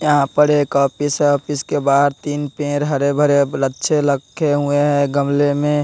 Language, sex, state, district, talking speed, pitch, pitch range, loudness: Hindi, male, Bihar, West Champaran, 165 wpm, 145 Hz, 140-145 Hz, -17 LUFS